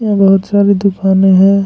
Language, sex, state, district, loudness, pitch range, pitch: Hindi, male, Jharkhand, Ranchi, -10 LUFS, 195-200 Hz, 195 Hz